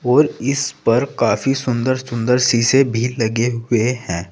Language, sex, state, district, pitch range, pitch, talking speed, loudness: Hindi, male, Uttar Pradesh, Saharanpur, 115-130 Hz, 125 Hz, 155 wpm, -17 LUFS